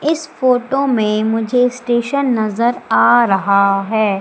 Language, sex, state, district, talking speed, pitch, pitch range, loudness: Hindi, female, Madhya Pradesh, Umaria, 130 wpm, 240 Hz, 215-255 Hz, -15 LUFS